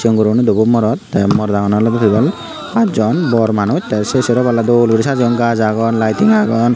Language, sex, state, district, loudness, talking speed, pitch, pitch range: Chakma, male, Tripura, Unakoti, -13 LUFS, 195 wpm, 115 Hz, 110-120 Hz